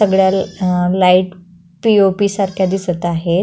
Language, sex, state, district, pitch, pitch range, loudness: Marathi, female, Maharashtra, Pune, 185 Hz, 180-195 Hz, -15 LUFS